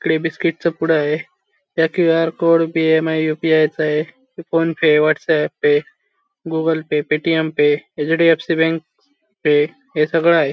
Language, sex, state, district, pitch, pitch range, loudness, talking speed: Marathi, male, Maharashtra, Sindhudurg, 165 Hz, 155-170 Hz, -17 LUFS, 190 wpm